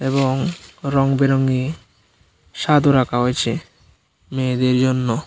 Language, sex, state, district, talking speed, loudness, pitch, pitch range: Bengali, male, Tripura, Unakoti, 90 wpm, -19 LUFS, 130 Hz, 120-135 Hz